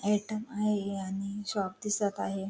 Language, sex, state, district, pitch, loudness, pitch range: Marathi, female, Maharashtra, Dhule, 205 Hz, -32 LUFS, 195-210 Hz